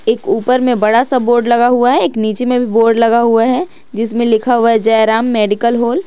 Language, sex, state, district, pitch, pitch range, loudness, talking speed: Hindi, male, Jharkhand, Garhwa, 235 Hz, 225-245 Hz, -12 LUFS, 255 wpm